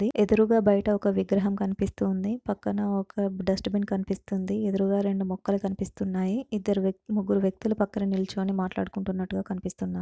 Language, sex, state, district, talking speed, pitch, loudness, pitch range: Telugu, female, Andhra Pradesh, Chittoor, 125 wpm, 200 Hz, -27 LUFS, 195-205 Hz